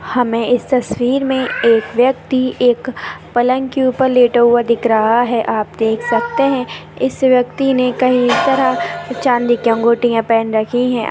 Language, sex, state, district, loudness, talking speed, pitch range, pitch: Hindi, female, Chhattisgarh, Kabirdham, -15 LUFS, 170 wpm, 235-255 Hz, 245 Hz